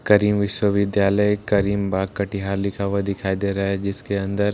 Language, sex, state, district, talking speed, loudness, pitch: Hindi, male, Bihar, Katihar, 185 wpm, -21 LUFS, 100 Hz